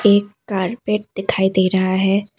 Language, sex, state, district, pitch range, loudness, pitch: Hindi, female, Assam, Kamrup Metropolitan, 190-205 Hz, -18 LUFS, 195 Hz